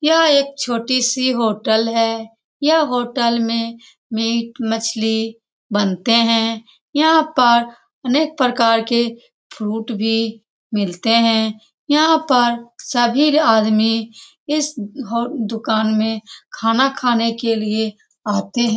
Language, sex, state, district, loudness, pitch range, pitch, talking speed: Hindi, female, Bihar, Saran, -17 LUFS, 225-255 Hz, 230 Hz, 125 wpm